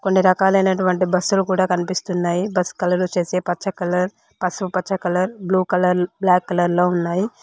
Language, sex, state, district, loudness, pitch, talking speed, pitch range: Telugu, female, Telangana, Mahabubabad, -19 LUFS, 185 Hz, 145 wpm, 180-190 Hz